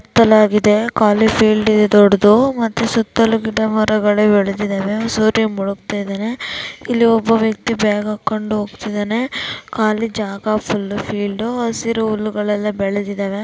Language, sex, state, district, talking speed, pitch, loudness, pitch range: Kannada, female, Karnataka, Dakshina Kannada, 105 wpm, 215 Hz, -16 LUFS, 205-225 Hz